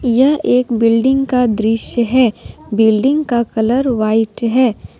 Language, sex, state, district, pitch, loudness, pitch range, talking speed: Hindi, female, Jharkhand, Deoghar, 235 Hz, -14 LUFS, 225-255 Hz, 130 wpm